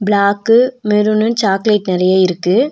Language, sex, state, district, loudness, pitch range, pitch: Tamil, female, Tamil Nadu, Nilgiris, -13 LUFS, 195-220 Hz, 210 Hz